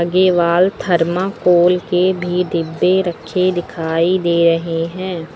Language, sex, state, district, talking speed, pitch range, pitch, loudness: Hindi, female, Uttar Pradesh, Lucknow, 125 wpm, 170-185 Hz, 175 Hz, -16 LUFS